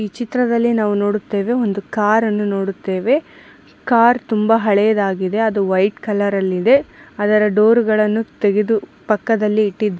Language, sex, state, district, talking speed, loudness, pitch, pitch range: Kannada, female, Karnataka, Mysore, 125 wpm, -17 LUFS, 215 Hz, 205-230 Hz